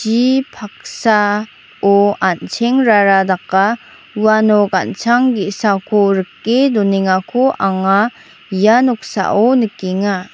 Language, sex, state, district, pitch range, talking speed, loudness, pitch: Garo, female, Meghalaya, North Garo Hills, 195-235 Hz, 75 wpm, -14 LUFS, 205 Hz